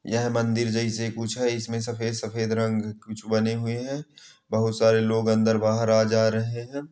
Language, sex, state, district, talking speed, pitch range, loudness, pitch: Hindi, male, Chhattisgarh, Balrampur, 190 wpm, 110-115 Hz, -25 LUFS, 115 Hz